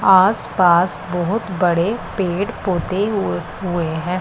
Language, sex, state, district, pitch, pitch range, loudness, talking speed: Hindi, female, Punjab, Pathankot, 185 Hz, 175-195 Hz, -19 LUFS, 115 wpm